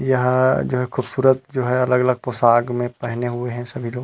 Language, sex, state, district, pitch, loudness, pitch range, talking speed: Chhattisgarhi, male, Chhattisgarh, Rajnandgaon, 125 Hz, -20 LUFS, 120-130 Hz, 195 wpm